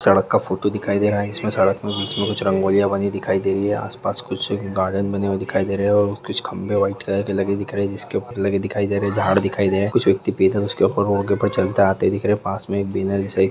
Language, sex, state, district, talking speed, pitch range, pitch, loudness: Hindi, male, Andhra Pradesh, Guntur, 275 wpm, 95-100 Hz, 100 Hz, -20 LUFS